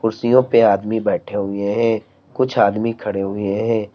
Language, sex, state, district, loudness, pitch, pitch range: Hindi, male, Uttar Pradesh, Lalitpur, -18 LUFS, 110 Hz, 100-115 Hz